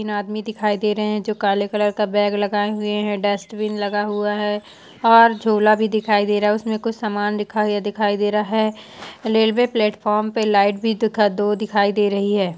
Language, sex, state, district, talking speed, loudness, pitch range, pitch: Hindi, female, Jharkhand, Jamtara, 215 wpm, -19 LUFS, 205-215 Hz, 210 Hz